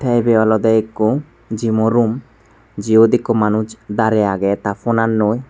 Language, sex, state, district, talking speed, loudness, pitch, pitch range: Chakma, male, Tripura, West Tripura, 165 wpm, -16 LUFS, 110 Hz, 110-115 Hz